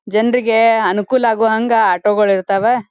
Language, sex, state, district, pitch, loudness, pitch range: Kannada, female, Karnataka, Dharwad, 220 Hz, -14 LUFS, 210-230 Hz